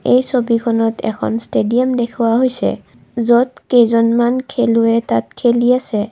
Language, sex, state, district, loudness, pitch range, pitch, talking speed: Assamese, female, Assam, Kamrup Metropolitan, -15 LUFS, 230-250 Hz, 235 Hz, 120 wpm